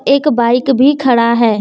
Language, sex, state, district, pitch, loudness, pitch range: Hindi, female, Jharkhand, Deoghar, 250 Hz, -11 LUFS, 235-275 Hz